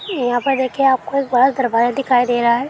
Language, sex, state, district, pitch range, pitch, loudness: Hindi, female, Chhattisgarh, Balrampur, 245-275 Hz, 255 Hz, -16 LUFS